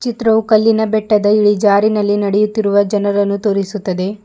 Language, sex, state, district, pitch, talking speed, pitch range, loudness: Kannada, female, Karnataka, Bidar, 210 Hz, 115 wpm, 205-215 Hz, -14 LUFS